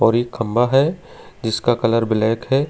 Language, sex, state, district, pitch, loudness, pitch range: Hindi, male, Delhi, New Delhi, 120 Hz, -19 LUFS, 115-130 Hz